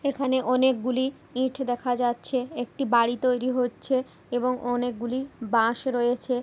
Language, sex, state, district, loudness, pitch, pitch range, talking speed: Bengali, female, West Bengal, Kolkata, -26 LUFS, 250 Hz, 245-260 Hz, 150 wpm